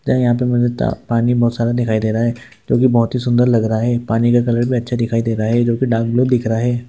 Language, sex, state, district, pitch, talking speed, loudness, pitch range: Hindi, male, Maharashtra, Solapur, 120 Hz, 280 wpm, -16 LUFS, 115-120 Hz